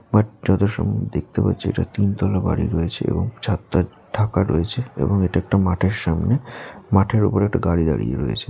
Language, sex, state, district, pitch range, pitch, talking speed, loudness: Bengali, male, West Bengal, Jalpaiguri, 90-105 Hz, 100 Hz, 170 wpm, -21 LUFS